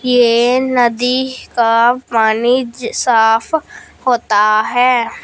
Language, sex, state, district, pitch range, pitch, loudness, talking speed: Hindi, female, Punjab, Fazilka, 230-255 Hz, 245 Hz, -13 LUFS, 90 wpm